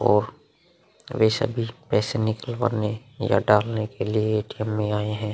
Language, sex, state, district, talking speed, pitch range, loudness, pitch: Hindi, male, Uttar Pradesh, Muzaffarnagar, 145 wpm, 105-120 Hz, -24 LUFS, 110 Hz